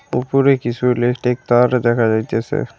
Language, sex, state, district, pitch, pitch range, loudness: Bengali, male, West Bengal, Cooch Behar, 125 Hz, 120-125 Hz, -17 LUFS